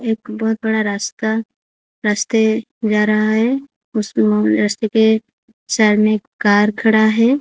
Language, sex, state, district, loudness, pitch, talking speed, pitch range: Hindi, female, Odisha, Khordha, -16 LUFS, 220 Hz, 140 wpm, 210-225 Hz